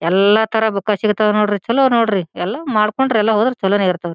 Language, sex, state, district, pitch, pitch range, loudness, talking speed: Kannada, female, Karnataka, Gulbarga, 215 Hz, 200-220 Hz, -16 LUFS, 200 wpm